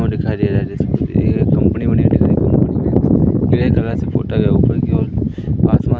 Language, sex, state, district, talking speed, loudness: Hindi, male, Madhya Pradesh, Katni, 230 wpm, -15 LUFS